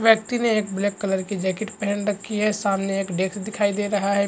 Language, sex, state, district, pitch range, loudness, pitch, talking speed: Hindi, male, Chhattisgarh, Bastar, 195-215 Hz, -23 LUFS, 205 Hz, 240 wpm